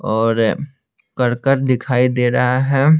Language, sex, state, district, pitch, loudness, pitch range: Hindi, male, Bihar, Patna, 125 Hz, -17 LUFS, 120-135 Hz